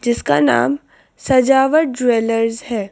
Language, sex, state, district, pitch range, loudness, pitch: Hindi, female, Madhya Pradesh, Bhopal, 225-270 Hz, -15 LUFS, 245 Hz